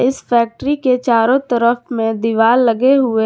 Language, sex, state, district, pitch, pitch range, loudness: Hindi, female, Jharkhand, Garhwa, 240 Hz, 230-255 Hz, -14 LUFS